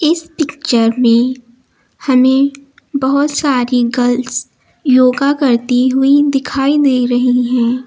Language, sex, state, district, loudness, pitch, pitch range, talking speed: Hindi, female, Uttar Pradesh, Lucknow, -13 LUFS, 260 Hz, 245-280 Hz, 105 wpm